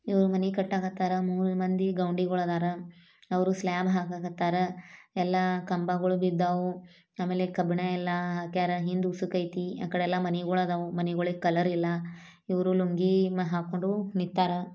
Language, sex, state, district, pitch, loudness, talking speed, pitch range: Kannada, female, Karnataka, Bijapur, 180 Hz, -29 LUFS, 130 wpm, 175-185 Hz